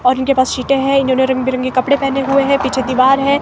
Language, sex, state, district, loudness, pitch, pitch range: Hindi, female, Himachal Pradesh, Shimla, -14 LUFS, 265 Hz, 260-275 Hz